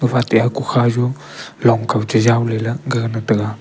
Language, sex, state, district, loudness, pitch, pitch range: Wancho, male, Arunachal Pradesh, Longding, -17 LUFS, 115 Hz, 110-125 Hz